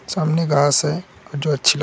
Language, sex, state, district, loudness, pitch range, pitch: Hindi, male, Uttar Pradesh, Hamirpur, -19 LUFS, 145-160 Hz, 150 Hz